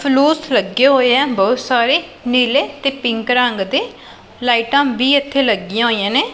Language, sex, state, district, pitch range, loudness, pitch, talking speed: Punjabi, female, Punjab, Pathankot, 235-275 Hz, -15 LUFS, 250 Hz, 160 wpm